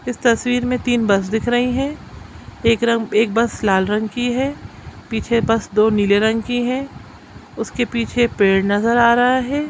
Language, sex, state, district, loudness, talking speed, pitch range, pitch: Hindi, female, Bihar, Gaya, -18 LUFS, 185 wpm, 220-245 Hz, 235 Hz